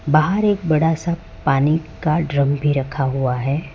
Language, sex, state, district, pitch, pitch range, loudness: Hindi, male, Gujarat, Valsad, 155 Hz, 135-160 Hz, -19 LUFS